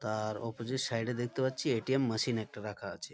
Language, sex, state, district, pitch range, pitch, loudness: Bengali, male, West Bengal, Malda, 110-130 Hz, 115 Hz, -34 LUFS